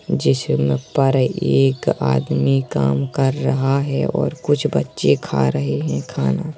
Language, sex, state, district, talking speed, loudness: Hindi, female, Uttar Pradesh, Jalaun, 120 wpm, -19 LUFS